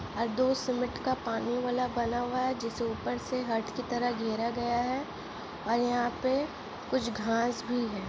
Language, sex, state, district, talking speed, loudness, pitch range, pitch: Hindi, female, Jharkhand, Jamtara, 185 wpm, -31 LUFS, 230-255 Hz, 240 Hz